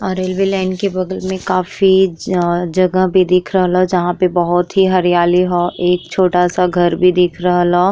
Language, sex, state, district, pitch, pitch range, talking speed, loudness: Bhojpuri, female, Uttar Pradesh, Ghazipur, 180 Hz, 175-185 Hz, 205 wpm, -14 LUFS